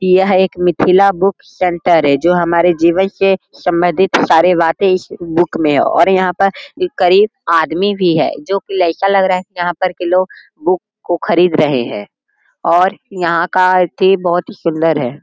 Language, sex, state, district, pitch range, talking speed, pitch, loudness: Hindi, male, Bihar, Jamui, 170-190 Hz, 185 wpm, 180 Hz, -13 LUFS